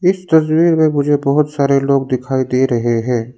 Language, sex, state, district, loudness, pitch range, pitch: Hindi, male, Arunachal Pradesh, Lower Dibang Valley, -14 LUFS, 130-155 Hz, 140 Hz